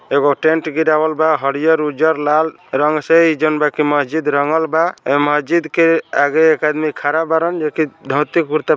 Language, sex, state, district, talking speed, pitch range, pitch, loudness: Bhojpuri, male, Bihar, Saran, 155 wpm, 150-160 Hz, 155 Hz, -15 LUFS